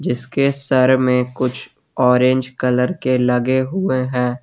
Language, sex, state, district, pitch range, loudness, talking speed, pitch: Hindi, male, Jharkhand, Garhwa, 125-130 Hz, -17 LUFS, 135 wpm, 130 Hz